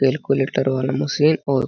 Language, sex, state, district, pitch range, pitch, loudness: Chhattisgarhi, male, Chhattisgarh, Jashpur, 130-140 Hz, 135 Hz, -19 LUFS